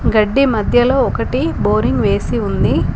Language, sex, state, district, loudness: Telugu, female, Telangana, Komaram Bheem, -15 LUFS